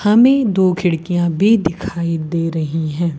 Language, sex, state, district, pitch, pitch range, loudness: Hindi, female, Rajasthan, Bikaner, 170 Hz, 165-195 Hz, -16 LUFS